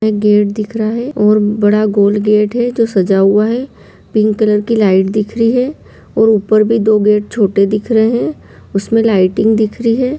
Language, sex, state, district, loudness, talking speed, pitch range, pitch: Angika, female, Bihar, Supaul, -12 LUFS, 200 wpm, 210-225 Hz, 215 Hz